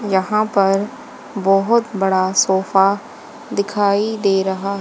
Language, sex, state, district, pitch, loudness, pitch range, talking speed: Hindi, female, Haryana, Charkhi Dadri, 200 Hz, -17 LUFS, 195-210 Hz, 100 wpm